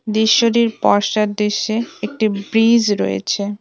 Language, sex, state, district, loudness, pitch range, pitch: Bengali, female, West Bengal, Cooch Behar, -16 LUFS, 205-225 Hz, 215 Hz